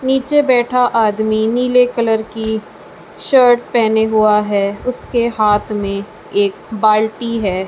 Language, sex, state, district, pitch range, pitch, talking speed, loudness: Hindi, female, Uttar Pradesh, Lucknow, 210-245 Hz, 220 Hz, 125 wpm, -15 LUFS